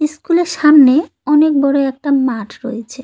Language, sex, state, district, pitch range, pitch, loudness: Bengali, female, West Bengal, Cooch Behar, 260-300 Hz, 280 Hz, -13 LUFS